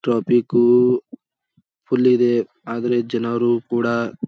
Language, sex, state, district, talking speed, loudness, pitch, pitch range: Kannada, male, Karnataka, Bijapur, 100 wpm, -19 LUFS, 120 Hz, 115-125 Hz